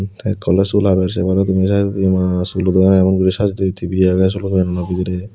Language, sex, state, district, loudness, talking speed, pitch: Chakma, male, Tripura, Unakoti, -16 LUFS, 235 wpm, 95 Hz